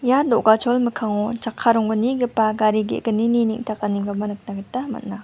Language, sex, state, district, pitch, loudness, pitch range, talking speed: Garo, female, Meghalaya, West Garo Hills, 225 Hz, -21 LUFS, 215-240 Hz, 125 wpm